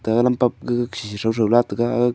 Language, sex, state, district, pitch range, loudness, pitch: Wancho, male, Arunachal Pradesh, Longding, 110-120 Hz, -20 LUFS, 120 Hz